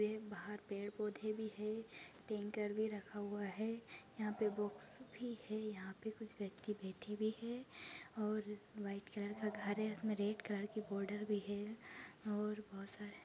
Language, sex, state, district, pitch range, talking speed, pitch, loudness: Hindi, female, Bihar, Jahanabad, 205-215 Hz, 170 wpm, 210 Hz, -45 LUFS